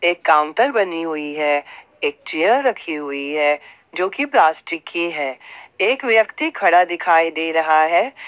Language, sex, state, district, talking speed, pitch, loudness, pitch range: Hindi, female, Jharkhand, Ranchi, 160 wpm, 165 Hz, -18 LUFS, 150-185 Hz